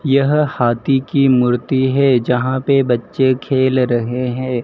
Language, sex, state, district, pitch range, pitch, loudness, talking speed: Hindi, male, Madhya Pradesh, Dhar, 125-135 Hz, 130 Hz, -15 LUFS, 140 wpm